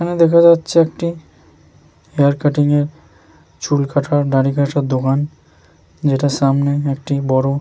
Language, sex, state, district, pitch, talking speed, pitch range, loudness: Bengali, male, West Bengal, Jhargram, 140 Hz, 135 wpm, 135-150 Hz, -16 LUFS